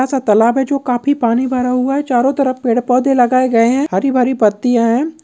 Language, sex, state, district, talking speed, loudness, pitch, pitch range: Hindi, male, Bihar, Purnia, 220 wpm, -14 LUFS, 255 Hz, 240-270 Hz